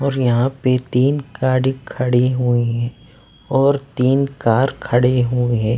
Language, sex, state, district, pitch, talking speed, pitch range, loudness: Hindi, male, Delhi, New Delhi, 125 Hz, 145 wpm, 120-135 Hz, -18 LUFS